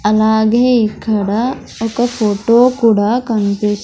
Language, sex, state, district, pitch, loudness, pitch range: Telugu, male, Andhra Pradesh, Sri Satya Sai, 220 Hz, -14 LUFS, 210-235 Hz